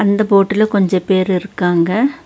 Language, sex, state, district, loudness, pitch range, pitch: Tamil, female, Tamil Nadu, Nilgiris, -14 LUFS, 185-210 Hz, 200 Hz